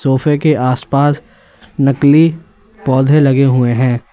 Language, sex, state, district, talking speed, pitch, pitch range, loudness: Hindi, male, Uttar Pradesh, Lalitpur, 115 wpm, 140 Hz, 130-150 Hz, -12 LUFS